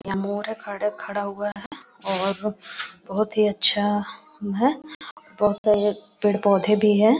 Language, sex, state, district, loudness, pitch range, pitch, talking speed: Hindi, female, Bihar, Araria, -22 LUFS, 205-215 Hz, 205 Hz, 135 wpm